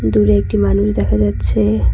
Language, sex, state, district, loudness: Bengali, female, West Bengal, Cooch Behar, -15 LUFS